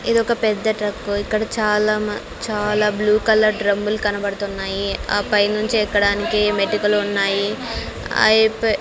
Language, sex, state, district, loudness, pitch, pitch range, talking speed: Telugu, female, Andhra Pradesh, Sri Satya Sai, -19 LUFS, 210 Hz, 205-215 Hz, 115 wpm